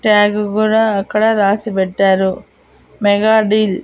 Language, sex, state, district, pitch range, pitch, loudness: Telugu, female, Andhra Pradesh, Annamaya, 195-215 Hz, 210 Hz, -14 LUFS